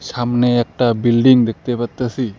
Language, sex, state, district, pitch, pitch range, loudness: Bengali, male, West Bengal, Cooch Behar, 120 Hz, 120-125 Hz, -16 LUFS